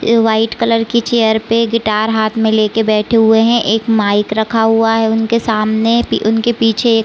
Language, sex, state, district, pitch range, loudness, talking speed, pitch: Hindi, female, Chhattisgarh, Raigarh, 220-230 Hz, -13 LUFS, 205 wpm, 225 Hz